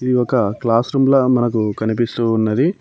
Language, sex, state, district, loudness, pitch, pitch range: Telugu, male, Telangana, Mahabubabad, -17 LUFS, 120 Hz, 110-130 Hz